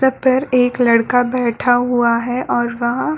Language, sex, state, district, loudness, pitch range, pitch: Hindi, female, Chhattisgarh, Balrampur, -16 LUFS, 240-255 Hz, 245 Hz